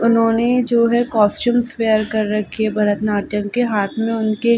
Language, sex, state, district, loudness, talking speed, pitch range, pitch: Hindi, female, Uttar Pradesh, Ghazipur, -18 LUFS, 185 wpm, 210-235 Hz, 225 Hz